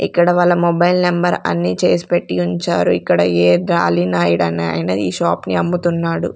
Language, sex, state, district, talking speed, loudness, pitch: Telugu, female, Andhra Pradesh, Sri Satya Sai, 170 wpm, -16 LUFS, 90 Hz